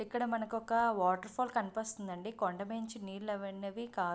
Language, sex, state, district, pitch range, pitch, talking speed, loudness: Telugu, female, Andhra Pradesh, Visakhapatnam, 195-230 Hz, 220 Hz, 200 wpm, -37 LUFS